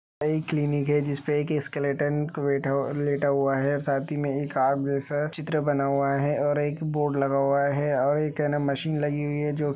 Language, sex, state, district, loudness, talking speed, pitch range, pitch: Hindi, male, Uttar Pradesh, Gorakhpur, -26 LUFS, 215 wpm, 140-150 Hz, 145 Hz